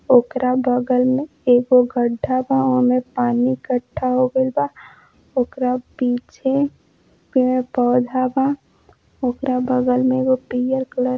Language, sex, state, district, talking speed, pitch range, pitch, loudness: Bhojpuri, female, Uttar Pradesh, Gorakhpur, 130 wpm, 250-260 Hz, 255 Hz, -19 LUFS